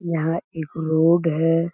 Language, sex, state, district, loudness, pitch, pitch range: Hindi, male, Chhattisgarh, Raigarh, -21 LUFS, 165 Hz, 160-170 Hz